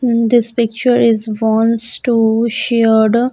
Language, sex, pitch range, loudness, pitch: English, female, 225-240 Hz, -14 LUFS, 230 Hz